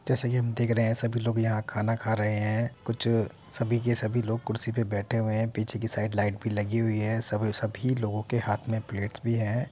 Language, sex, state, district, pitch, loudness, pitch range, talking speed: Hindi, male, Uttar Pradesh, Muzaffarnagar, 115 Hz, -29 LUFS, 105-115 Hz, 255 wpm